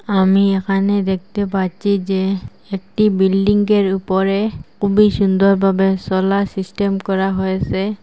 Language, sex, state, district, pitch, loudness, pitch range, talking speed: Bengali, female, Assam, Hailakandi, 195 Hz, -17 LUFS, 190-200 Hz, 105 wpm